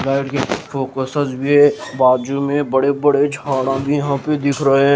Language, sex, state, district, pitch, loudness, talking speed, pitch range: Hindi, male, Haryana, Jhajjar, 140 Hz, -17 LUFS, 180 wpm, 135-145 Hz